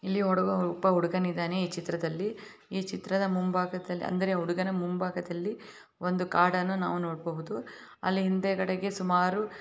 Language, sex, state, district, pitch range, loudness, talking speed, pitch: Kannada, female, Karnataka, Bellary, 180-190 Hz, -30 LUFS, 130 wpm, 185 Hz